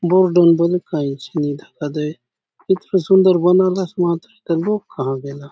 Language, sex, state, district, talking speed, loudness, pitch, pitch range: Halbi, male, Chhattisgarh, Bastar, 150 wpm, -18 LUFS, 170 Hz, 145-185 Hz